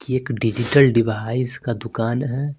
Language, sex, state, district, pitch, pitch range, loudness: Hindi, male, Bihar, Patna, 120 Hz, 115-130 Hz, -20 LUFS